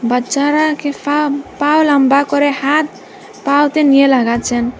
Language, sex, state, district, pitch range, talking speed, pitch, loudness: Bengali, female, Assam, Hailakandi, 275-300 Hz, 140 wpm, 285 Hz, -13 LUFS